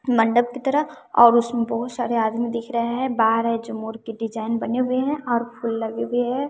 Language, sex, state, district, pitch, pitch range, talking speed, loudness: Hindi, female, Bihar, West Champaran, 235 Hz, 230-245 Hz, 230 wpm, -22 LUFS